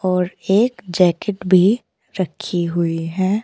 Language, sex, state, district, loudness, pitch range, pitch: Hindi, female, Uttar Pradesh, Saharanpur, -18 LUFS, 175-200 Hz, 185 Hz